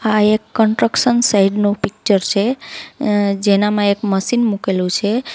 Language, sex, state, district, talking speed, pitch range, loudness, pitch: Gujarati, female, Gujarat, Valsad, 135 wpm, 200-230 Hz, -16 LUFS, 210 Hz